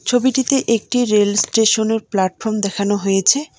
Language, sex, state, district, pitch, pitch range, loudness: Bengali, female, West Bengal, Alipurduar, 220 Hz, 205-245 Hz, -16 LUFS